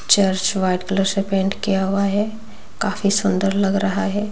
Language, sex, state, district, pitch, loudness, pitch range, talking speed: Hindi, female, Bihar, Bhagalpur, 200 Hz, -19 LUFS, 195-205 Hz, 180 wpm